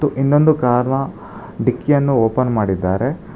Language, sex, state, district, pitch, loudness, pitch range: Kannada, male, Karnataka, Bangalore, 135 Hz, -17 LUFS, 120-145 Hz